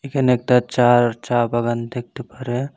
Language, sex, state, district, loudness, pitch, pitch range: Bengali, male, Tripura, Unakoti, -19 LUFS, 125 Hz, 120-125 Hz